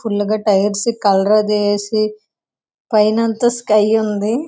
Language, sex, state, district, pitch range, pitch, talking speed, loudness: Telugu, female, Andhra Pradesh, Visakhapatnam, 205-220 Hz, 215 Hz, 120 wpm, -16 LUFS